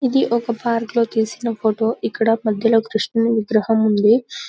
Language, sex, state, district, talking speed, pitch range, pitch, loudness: Telugu, female, Telangana, Karimnagar, 160 wpm, 220-235 Hz, 225 Hz, -18 LUFS